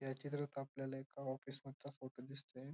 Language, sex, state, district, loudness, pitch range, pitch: Marathi, male, Maharashtra, Dhule, -48 LUFS, 135-140 Hz, 135 Hz